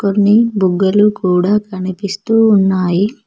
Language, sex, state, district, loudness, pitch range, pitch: Telugu, female, Telangana, Mahabubabad, -13 LUFS, 185-210 Hz, 200 Hz